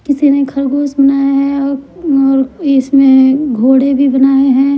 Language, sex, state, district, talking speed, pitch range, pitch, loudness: Hindi, female, Bihar, Patna, 150 wpm, 270-280 Hz, 275 Hz, -11 LUFS